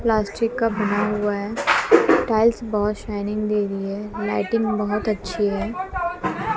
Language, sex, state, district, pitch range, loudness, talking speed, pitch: Hindi, female, Haryana, Jhajjar, 205-225 Hz, -22 LUFS, 135 wpm, 210 Hz